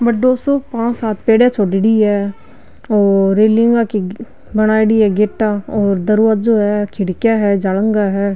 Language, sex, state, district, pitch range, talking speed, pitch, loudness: Marwari, female, Rajasthan, Nagaur, 200-225 Hz, 160 wpm, 215 Hz, -14 LUFS